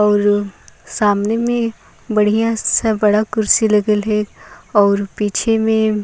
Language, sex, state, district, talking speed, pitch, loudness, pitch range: Sadri, female, Chhattisgarh, Jashpur, 130 wpm, 215 Hz, -16 LUFS, 210-220 Hz